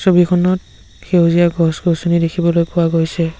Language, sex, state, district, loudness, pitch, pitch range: Assamese, male, Assam, Sonitpur, -15 LUFS, 170 Hz, 165-175 Hz